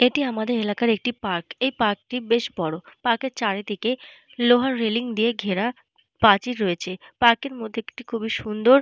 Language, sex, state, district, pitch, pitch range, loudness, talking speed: Bengali, female, Jharkhand, Jamtara, 230 Hz, 210-245 Hz, -23 LUFS, 175 wpm